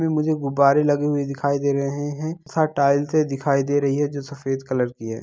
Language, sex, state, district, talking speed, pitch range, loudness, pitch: Angika, male, Bihar, Madhepura, 230 wpm, 140-145 Hz, -22 LUFS, 140 Hz